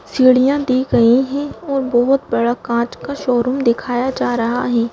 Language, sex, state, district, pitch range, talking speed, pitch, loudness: Hindi, female, Madhya Pradesh, Bhopal, 240-265 Hz, 170 wpm, 250 Hz, -16 LUFS